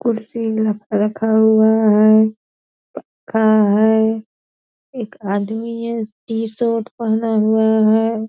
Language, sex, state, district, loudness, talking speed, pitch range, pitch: Hindi, female, Bihar, Purnia, -16 LUFS, 100 wpm, 215-225 Hz, 220 Hz